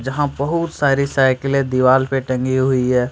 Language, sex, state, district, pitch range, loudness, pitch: Hindi, male, Jharkhand, Ranchi, 130-140 Hz, -17 LUFS, 135 Hz